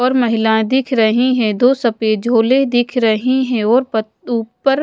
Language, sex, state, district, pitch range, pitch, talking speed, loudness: Hindi, female, Odisha, Malkangiri, 225-255 Hz, 240 Hz, 175 wpm, -15 LUFS